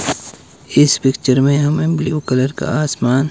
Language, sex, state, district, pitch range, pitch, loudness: Hindi, male, Himachal Pradesh, Shimla, 130-155 Hz, 145 Hz, -16 LUFS